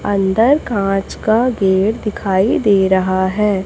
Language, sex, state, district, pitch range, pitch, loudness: Hindi, female, Chhattisgarh, Raipur, 190-215 Hz, 200 Hz, -15 LUFS